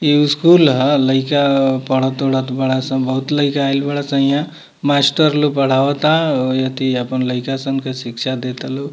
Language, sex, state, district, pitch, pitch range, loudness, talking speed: Bhojpuri, male, Bihar, Muzaffarpur, 135 Hz, 130-145 Hz, -16 LUFS, 175 wpm